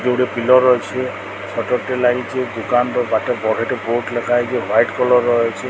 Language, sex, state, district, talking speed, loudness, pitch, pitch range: Odia, male, Odisha, Sambalpur, 190 wpm, -17 LUFS, 125 Hz, 120-125 Hz